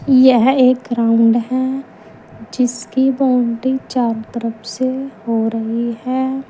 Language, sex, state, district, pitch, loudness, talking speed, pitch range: Hindi, female, Uttar Pradesh, Saharanpur, 250 Hz, -16 LUFS, 110 wpm, 230-260 Hz